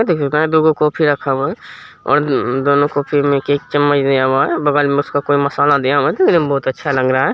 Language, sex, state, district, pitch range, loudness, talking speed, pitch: Maithili, male, Bihar, Supaul, 140-145 Hz, -15 LUFS, 245 wpm, 145 Hz